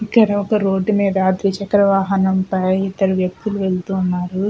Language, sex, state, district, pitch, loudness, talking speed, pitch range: Telugu, female, Andhra Pradesh, Guntur, 195 Hz, -17 LUFS, 135 wpm, 190-200 Hz